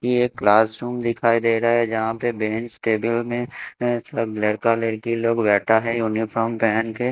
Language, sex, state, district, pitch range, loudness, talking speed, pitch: Hindi, male, Haryana, Jhajjar, 110-120 Hz, -21 LUFS, 195 wpm, 115 Hz